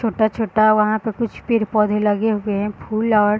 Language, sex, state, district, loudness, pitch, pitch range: Hindi, female, Bihar, Sitamarhi, -19 LUFS, 215 Hz, 210-220 Hz